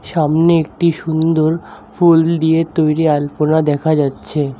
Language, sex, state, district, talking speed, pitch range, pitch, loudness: Bengali, male, West Bengal, Alipurduar, 115 wpm, 150-165 Hz, 160 Hz, -15 LUFS